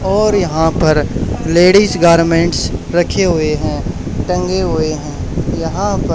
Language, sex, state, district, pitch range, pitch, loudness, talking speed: Hindi, male, Haryana, Charkhi Dadri, 150-180 Hz, 165 Hz, -14 LUFS, 125 wpm